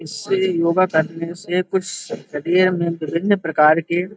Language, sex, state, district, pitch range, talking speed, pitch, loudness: Hindi, male, Uttar Pradesh, Hamirpur, 165-185 Hz, 160 wpm, 175 Hz, -19 LUFS